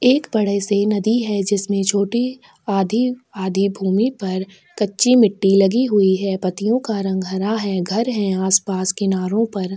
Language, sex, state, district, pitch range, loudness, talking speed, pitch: Hindi, female, Chhattisgarh, Sukma, 195-225 Hz, -18 LUFS, 160 wpm, 200 Hz